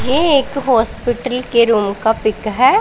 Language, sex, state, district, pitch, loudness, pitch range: Hindi, female, Punjab, Pathankot, 240 Hz, -15 LUFS, 225-260 Hz